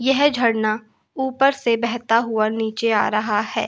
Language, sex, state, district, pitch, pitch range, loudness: Hindi, female, Uttar Pradesh, Hamirpur, 230 Hz, 215-245 Hz, -20 LUFS